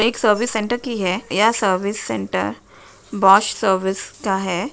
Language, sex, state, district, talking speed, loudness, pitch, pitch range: Hindi, female, Uttar Pradesh, Jalaun, 150 wpm, -19 LUFS, 200 Hz, 185-220 Hz